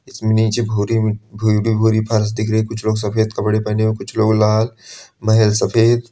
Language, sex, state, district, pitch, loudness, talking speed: Hindi, male, Bihar, Bhagalpur, 110 Hz, -17 LUFS, 195 wpm